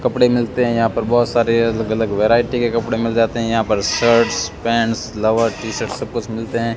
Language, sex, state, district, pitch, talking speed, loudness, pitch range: Hindi, male, Rajasthan, Bikaner, 115 Hz, 220 wpm, -17 LUFS, 110-115 Hz